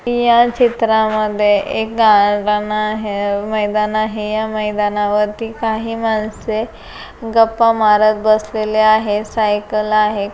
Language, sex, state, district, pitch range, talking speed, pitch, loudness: Marathi, female, Maharashtra, Solapur, 210-220 Hz, 100 wpm, 215 Hz, -15 LUFS